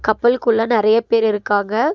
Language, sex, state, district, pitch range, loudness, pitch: Tamil, female, Tamil Nadu, Nilgiris, 215-235 Hz, -16 LUFS, 225 Hz